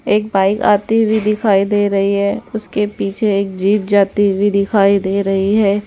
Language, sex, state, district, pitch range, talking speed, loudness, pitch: Hindi, female, Bihar, West Champaran, 195-210 Hz, 185 wpm, -15 LUFS, 200 Hz